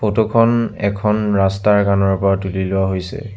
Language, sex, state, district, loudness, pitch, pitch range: Assamese, male, Assam, Sonitpur, -17 LUFS, 100 Hz, 95-105 Hz